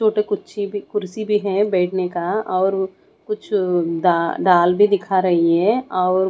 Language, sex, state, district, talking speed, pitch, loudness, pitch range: Hindi, female, Maharashtra, Mumbai Suburban, 160 wpm, 190 Hz, -19 LUFS, 180-210 Hz